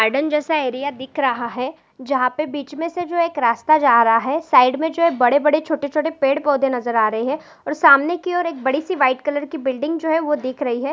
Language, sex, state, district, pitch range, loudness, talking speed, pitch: Hindi, female, Chhattisgarh, Bilaspur, 255-310 Hz, -19 LUFS, 245 wpm, 285 Hz